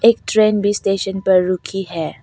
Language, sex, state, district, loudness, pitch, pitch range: Hindi, female, Arunachal Pradesh, Papum Pare, -17 LUFS, 195 Hz, 185-210 Hz